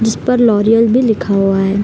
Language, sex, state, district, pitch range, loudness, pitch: Hindi, female, Bihar, Madhepura, 200-230 Hz, -12 LUFS, 225 Hz